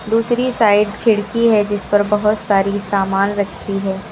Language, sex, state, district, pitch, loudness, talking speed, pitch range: Hindi, female, Uttar Pradesh, Lucknow, 205 Hz, -16 LUFS, 160 wpm, 200-215 Hz